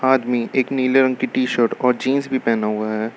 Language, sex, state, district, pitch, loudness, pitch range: Hindi, male, Uttar Pradesh, Lucknow, 125 Hz, -19 LUFS, 115-130 Hz